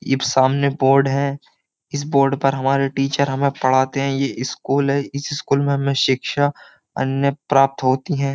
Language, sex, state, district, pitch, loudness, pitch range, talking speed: Hindi, male, Uttar Pradesh, Jyotiba Phule Nagar, 140 Hz, -19 LUFS, 135-140 Hz, 180 wpm